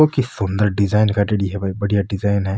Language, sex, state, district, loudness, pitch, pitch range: Rajasthani, male, Rajasthan, Nagaur, -19 LUFS, 100 Hz, 100-105 Hz